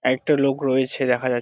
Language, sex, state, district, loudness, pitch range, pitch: Bengali, male, West Bengal, Jalpaiguri, -21 LUFS, 130-140 Hz, 130 Hz